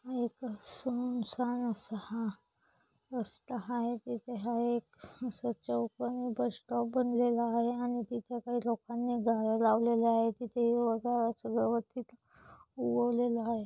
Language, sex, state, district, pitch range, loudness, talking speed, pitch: Marathi, female, Maharashtra, Chandrapur, 230-245 Hz, -34 LUFS, 130 wpm, 235 Hz